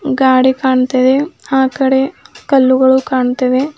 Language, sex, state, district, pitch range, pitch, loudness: Kannada, female, Karnataka, Bidar, 260-270 Hz, 265 Hz, -12 LUFS